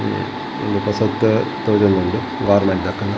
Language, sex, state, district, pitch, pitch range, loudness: Tulu, male, Karnataka, Dakshina Kannada, 100 Hz, 100-110 Hz, -18 LUFS